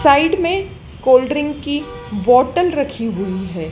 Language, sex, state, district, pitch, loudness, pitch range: Hindi, female, Madhya Pradesh, Dhar, 275 Hz, -17 LUFS, 225-295 Hz